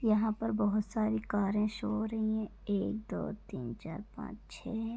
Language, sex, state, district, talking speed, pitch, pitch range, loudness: Hindi, female, Uttar Pradesh, Gorakhpur, 195 wpm, 215 Hz, 210-220 Hz, -35 LUFS